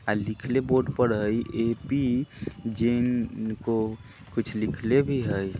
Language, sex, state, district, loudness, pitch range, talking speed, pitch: Bajjika, male, Bihar, Vaishali, -27 LUFS, 110-125 Hz, 120 wpm, 115 Hz